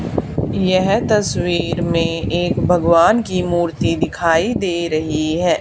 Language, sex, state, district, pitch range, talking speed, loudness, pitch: Hindi, female, Haryana, Charkhi Dadri, 165-185 Hz, 115 wpm, -17 LUFS, 175 Hz